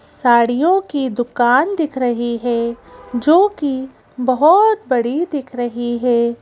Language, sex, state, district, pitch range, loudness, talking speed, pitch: Hindi, female, Madhya Pradesh, Bhopal, 240-295 Hz, -16 LUFS, 120 wpm, 250 Hz